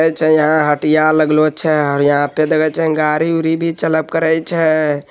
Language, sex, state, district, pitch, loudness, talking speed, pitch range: Hindi, male, Bihar, Begusarai, 155 Hz, -14 LUFS, 175 wpm, 150-160 Hz